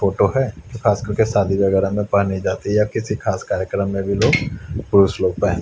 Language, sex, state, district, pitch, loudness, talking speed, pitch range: Hindi, male, Haryana, Charkhi Dadri, 100 Hz, -19 LUFS, 215 wpm, 95-110 Hz